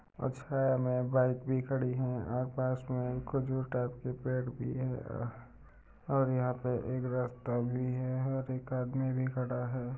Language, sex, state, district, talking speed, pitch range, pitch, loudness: Hindi, male, Uttar Pradesh, Jyotiba Phule Nagar, 170 wpm, 125-130 Hz, 125 Hz, -34 LUFS